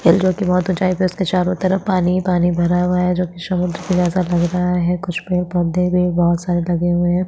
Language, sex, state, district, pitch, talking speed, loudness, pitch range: Hindi, female, Chhattisgarh, Sukma, 180 Hz, 270 wpm, -18 LUFS, 175-185 Hz